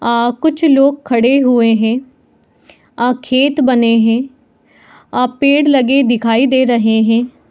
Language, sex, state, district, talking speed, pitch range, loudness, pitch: Hindi, female, Bihar, Madhepura, 145 wpm, 235-270 Hz, -12 LUFS, 250 Hz